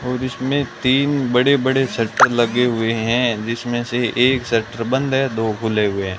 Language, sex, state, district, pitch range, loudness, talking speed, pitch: Hindi, male, Rajasthan, Bikaner, 115-130 Hz, -18 LUFS, 185 wpm, 120 Hz